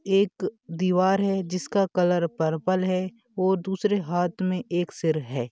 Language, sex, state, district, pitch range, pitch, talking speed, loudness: Bhojpuri, male, Uttar Pradesh, Gorakhpur, 175-190 Hz, 185 Hz, 150 wpm, -25 LUFS